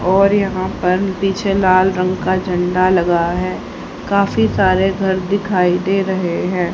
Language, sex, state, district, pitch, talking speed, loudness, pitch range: Hindi, female, Haryana, Charkhi Dadri, 185 Hz, 150 wpm, -16 LUFS, 180-195 Hz